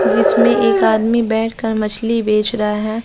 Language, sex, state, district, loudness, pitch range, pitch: Hindi, female, Bihar, West Champaran, -15 LUFS, 215-230 Hz, 220 Hz